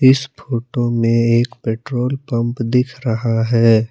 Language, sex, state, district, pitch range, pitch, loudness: Hindi, male, Jharkhand, Palamu, 115-125 Hz, 120 Hz, -17 LUFS